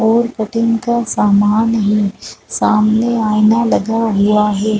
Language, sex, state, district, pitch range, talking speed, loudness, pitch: Hindi, female, Chhattisgarh, Balrampur, 210-230 Hz, 125 wpm, -14 LUFS, 220 Hz